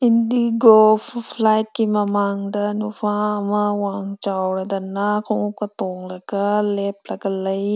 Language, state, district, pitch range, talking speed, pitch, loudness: Manipuri, Manipur, Imphal West, 200-215 Hz, 85 wpm, 205 Hz, -20 LUFS